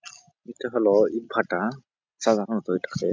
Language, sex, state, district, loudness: Bengali, male, West Bengal, Jhargram, -25 LUFS